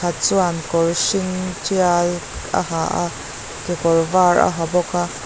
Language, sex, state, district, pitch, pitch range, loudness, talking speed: Mizo, female, Mizoram, Aizawl, 175 Hz, 170-185 Hz, -19 LUFS, 150 wpm